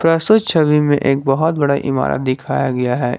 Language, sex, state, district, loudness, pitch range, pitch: Hindi, male, Jharkhand, Garhwa, -15 LUFS, 130-160 Hz, 140 Hz